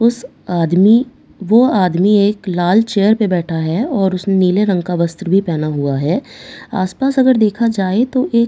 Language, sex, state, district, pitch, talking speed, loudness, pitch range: Hindi, female, Bihar, Katihar, 195 Hz, 200 wpm, -15 LUFS, 180-230 Hz